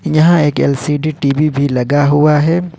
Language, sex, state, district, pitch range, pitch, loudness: Hindi, male, Jharkhand, Ranchi, 140-155 Hz, 150 Hz, -13 LUFS